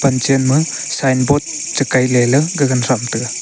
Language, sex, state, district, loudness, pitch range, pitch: Wancho, male, Arunachal Pradesh, Longding, -15 LUFS, 130-140 Hz, 135 Hz